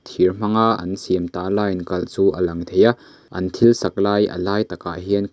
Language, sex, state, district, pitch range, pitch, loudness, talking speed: Mizo, male, Mizoram, Aizawl, 90-105 Hz, 95 Hz, -20 LUFS, 235 wpm